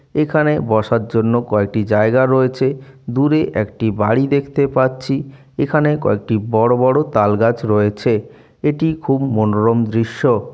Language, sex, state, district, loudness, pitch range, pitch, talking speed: Bengali, male, West Bengal, Jalpaiguri, -16 LUFS, 110-140 Hz, 130 Hz, 125 wpm